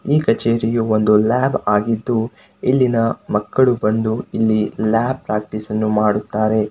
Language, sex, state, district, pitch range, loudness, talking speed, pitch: Kannada, male, Karnataka, Shimoga, 105-115 Hz, -18 LUFS, 115 wpm, 110 Hz